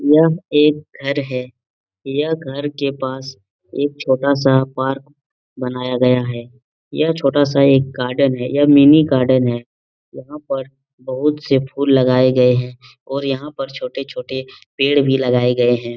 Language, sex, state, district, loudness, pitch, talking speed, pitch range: Hindi, male, Bihar, Lakhisarai, -17 LUFS, 135 Hz, 160 wpm, 125-140 Hz